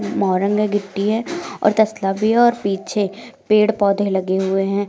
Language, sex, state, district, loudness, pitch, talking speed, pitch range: Hindi, female, Uttar Pradesh, Lucknow, -18 LUFS, 205 Hz, 185 wpm, 195-220 Hz